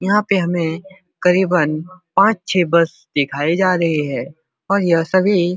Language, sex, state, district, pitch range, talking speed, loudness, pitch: Hindi, male, Bihar, Supaul, 165-190 Hz, 160 wpm, -17 LUFS, 175 Hz